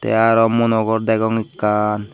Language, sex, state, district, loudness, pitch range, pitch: Chakma, male, Tripura, Dhalai, -17 LUFS, 105-115 Hz, 110 Hz